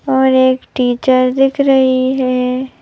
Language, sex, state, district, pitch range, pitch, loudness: Hindi, female, Madhya Pradesh, Bhopal, 255-265 Hz, 260 Hz, -13 LUFS